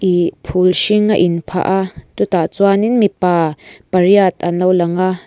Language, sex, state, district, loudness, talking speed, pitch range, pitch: Mizo, female, Mizoram, Aizawl, -14 LUFS, 170 wpm, 175-190 Hz, 185 Hz